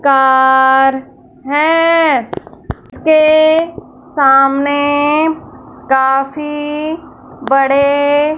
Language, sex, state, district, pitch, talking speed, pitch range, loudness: Hindi, female, Punjab, Fazilka, 285 Hz, 45 wpm, 270-310 Hz, -12 LUFS